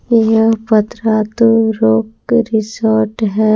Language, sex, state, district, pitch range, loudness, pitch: Hindi, female, Jharkhand, Palamu, 215-225 Hz, -13 LUFS, 220 Hz